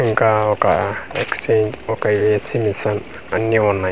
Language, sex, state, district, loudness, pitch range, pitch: Telugu, male, Andhra Pradesh, Manyam, -18 LUFS, 105-110 Hz, 105 Hz